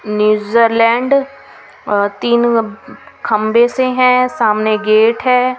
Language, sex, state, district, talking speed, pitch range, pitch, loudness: Hindi, female, Punjab, Kapurthala, 85 wpm, 215-250 Hz, 230 Hz, -13 LUFS